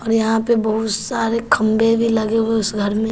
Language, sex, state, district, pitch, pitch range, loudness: Hindi, female, Bihar, West Champaran, 225 Hz, 220-230 Hz, -18 LUFS